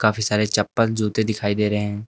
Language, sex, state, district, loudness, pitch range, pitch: Hindi, male, Uttar Pradesh, Lucknow, -21 LUFS, 105-110 Hz, 105 Hz